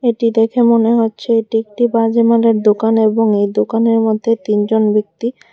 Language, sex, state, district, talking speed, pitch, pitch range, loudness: Bengali, female, Tripura, West Tripura, 150 wpm, 225 Hz, 220-230 Hz, -14 LUFS